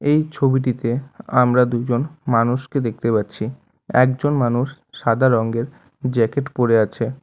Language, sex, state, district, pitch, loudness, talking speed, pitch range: Bengali, male, West Bengal, Alipurduar, 125 Hz, -19 LUFS, 115 wpm, 115-135 Hz